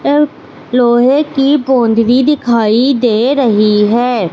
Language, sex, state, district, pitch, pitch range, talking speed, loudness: Hindi, female, Madhya Pradesh, Katni, 245 Hz, 230-275 Hz, 110 wpm, -11 LUFS